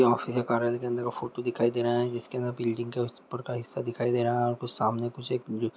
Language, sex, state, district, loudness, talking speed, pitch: Hindi, male, Bihar, Lakhisarai, -30 LUFS, 280 wpm, 120 Hz